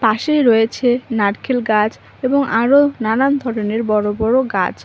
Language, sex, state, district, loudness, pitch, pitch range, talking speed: Bengali, female, West Bengal, Cooch Behar, -16 LUFS, 230 Hz, 215-260 Hz, 135 wpm